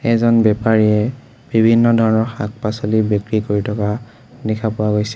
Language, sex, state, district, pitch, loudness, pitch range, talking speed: Assamese, male, Assam, Sonitpur, 110 Hz, -16 LUFS, 105-115 Hz, 130 wpm